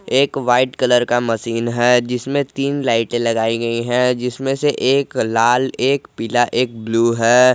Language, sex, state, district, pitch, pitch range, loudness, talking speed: Hindi, male, Jharkhand, Garhwa, 125 Hz, 115-130 Hz, -17 LUFS, 165 wpm